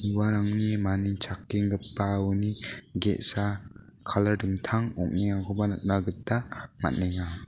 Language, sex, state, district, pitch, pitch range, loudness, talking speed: Garo, male, Meghalaya, West Garo Hills, 100 Hz, 95-105 Hz, -26 LUFS, 70 wpm